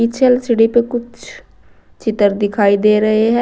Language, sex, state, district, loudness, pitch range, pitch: Hindi, female, Uttar Pradesh, Saharanpur, -14 LUFS, 210-235 Hz, 225 Hz